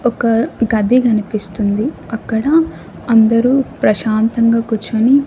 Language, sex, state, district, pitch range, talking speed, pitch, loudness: Telugu, male, Andhra Pradesh, Annamaya, 220-245 Hz, 80 wpm, 230 Hz, -15 LUFS